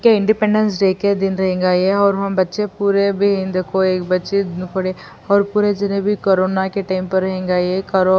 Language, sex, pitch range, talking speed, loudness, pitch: Urdu, female, 185-200 Hz, 215 wpm, -17 LUFS, 195 Hz